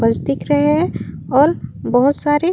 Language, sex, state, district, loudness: Chhattisgarhi, female, Chhattisgarh, Raigarh, -16 LUFS